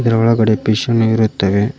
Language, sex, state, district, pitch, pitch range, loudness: Kannada, male, Karnataka, Koppal, 110 Hz, 110-115 Hz, -14 LUFS